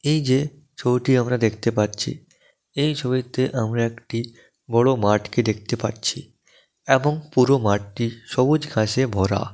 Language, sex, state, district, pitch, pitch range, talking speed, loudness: Bengali, male, West Bengal, Dakshin Dinajpur, 120 Hz, 110-135 Hz, 125 wpm, -22 LUFS